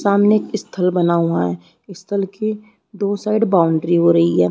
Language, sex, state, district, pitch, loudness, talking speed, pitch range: Hindi, female, Chhattisgarh, Balrampur, 190 Hz, -17 LUFS, 175 wpm, 165-205 Hz